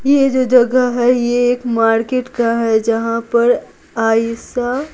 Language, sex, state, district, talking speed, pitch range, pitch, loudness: Hindi, female, Bihar, Patna, 145 wpm, 230-255 Hz, 245 Hz, -15 LUFS